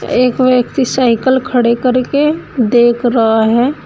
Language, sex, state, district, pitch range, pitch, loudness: Hindi, female, Uttar Pradesh, Shamli, 240-260 Hz, 250 Hz, -12 LUFS